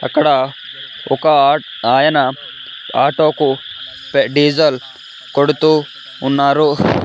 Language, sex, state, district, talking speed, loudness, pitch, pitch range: Telugu, male, Andhra Pradesh, Sri Satya Sai, 75 wpm, -14 LUFS, 145 Hz, 140-155 Hz